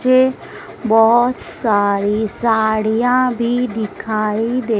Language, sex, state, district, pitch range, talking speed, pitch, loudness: Hindi, female, Madhya Pradesh, Dhar, 215-245 Hz, 85 wpm, 225 Hz, -16 LUFS